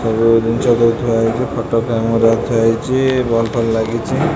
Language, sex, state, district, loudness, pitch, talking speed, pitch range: Odia, male, Odisha, Khordha, -15 LUFS, 115 Hz, 180 wpm, 115-120 Hz